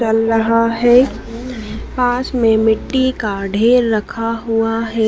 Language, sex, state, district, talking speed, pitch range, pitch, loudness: Hindi, female, Madhya Pradesh, Dhar, 130 wpm, 220-245 Hz, 230 Hz, -15 LUFS